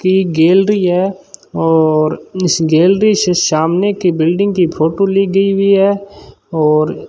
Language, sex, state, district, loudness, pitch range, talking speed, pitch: Hindi, male, Rajasthan, Bikaner, -13 LUFS, 160-195 Hz, 150 wpm, 185 Hz